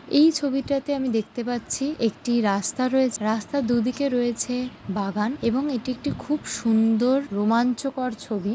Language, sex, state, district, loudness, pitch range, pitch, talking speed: Bengali, female, West Bengal, Malda, -24 LUFS, 225-270 Hz, 245 Hz, 135 wpm